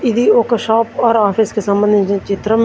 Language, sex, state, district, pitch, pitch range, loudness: Telugu, male, Telangana, Komaram Bheem, 220 Hz, 205-230 Hz, -14 LUFS